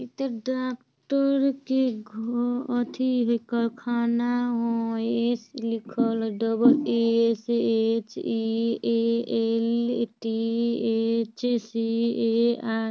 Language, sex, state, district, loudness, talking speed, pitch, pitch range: Bajjika, female, Bihar, Vaishali, -25 LUFS, 105 wpm, 235 Hz, 230-245 Hz